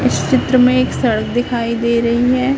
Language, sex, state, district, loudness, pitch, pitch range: Hindi, female, Chhattisgarh, Raipur, -15 LUFS, 240 Hz, 235-255 Hz